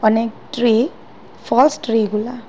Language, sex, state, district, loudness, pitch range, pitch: Bengali, female, Assam, Hailakandi, -17 LUFS, 225-250 Hz, 230 Hz